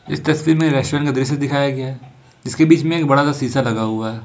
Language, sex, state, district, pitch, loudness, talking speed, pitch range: Hindi, male, Jharkhand, Ranchi, 140 Hz, -17 LUFS, 270 wpm, 130-155 Hz